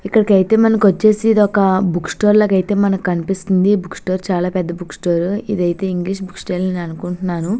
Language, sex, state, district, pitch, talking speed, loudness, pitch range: Telugu, female, Andhra Pradesh, Visakhapatnam, 190 Hz, 165 wpm, -16 LUFS, 180-205 Hz